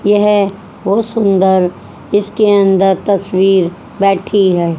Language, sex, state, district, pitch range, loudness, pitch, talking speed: Hindi, female, Haryana, Rohtak, 190-205 Hz, -12 LUFS, 195 Hz, 100 wpm